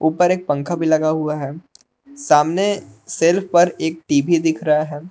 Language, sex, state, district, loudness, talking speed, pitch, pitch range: Hindi, male, Jharkhand, Palamu, -18 LUFS, 175 wpm, 160 Hz, 150-175 Hz